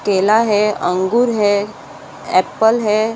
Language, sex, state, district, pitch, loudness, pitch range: Hindi, female, Uttar Pradesh, Muzaffarnagar, 210 Hz, -15 LUFS, 205-225 Hz